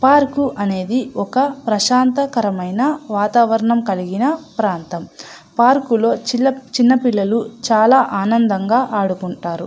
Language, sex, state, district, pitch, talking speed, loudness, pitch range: Telugu, female, Andhra Pradesh, Anantapur, 230 Hz, 95 wpm, -16 LUFS, 200-260 Hz